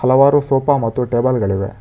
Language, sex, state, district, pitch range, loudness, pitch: Kannada, male, Karnataka, Bangalore, 115-135 Hz, -16 LUFS, 125 Hz